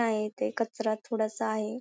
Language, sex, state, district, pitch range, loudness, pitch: Marathi, female, Maharashtra, Pune, 215-230 Hz, -31 LUFS, 220 Hz